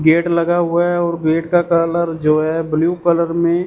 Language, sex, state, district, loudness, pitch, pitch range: Hindi, male, Punjab, Fazilka, -16 LUFS, 170 Hz, 165-170 Hz